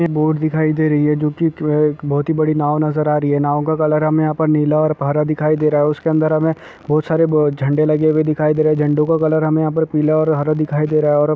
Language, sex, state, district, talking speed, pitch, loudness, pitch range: Hindi, male, Chhattisgarh, Kabirdham, 290 wpm, 155 Hz, -16 LUFS, 150-155 Hz